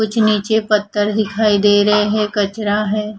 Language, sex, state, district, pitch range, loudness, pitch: Hindi, female, Odisha, Khordha, 205-215 Hz, -16 LUFS, 210 Hz